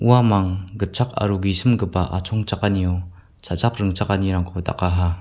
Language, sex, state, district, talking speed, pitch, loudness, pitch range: Garo, male, Meghalaya, West Garo Hills, 90 wpm, 95 Hz, -21 LUFS, 90-105 Hz